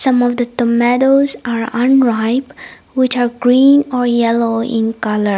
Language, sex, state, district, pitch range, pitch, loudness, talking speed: English, female, Nagaland, Dimapur, 230-260 Hz, 245 Hz, -14 LUFS, 120 wpm